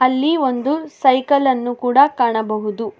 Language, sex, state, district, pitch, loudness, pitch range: Kannada, female, Karnataka, Bangalore, 255 Hz, -17 LUFS, 240-280 Hz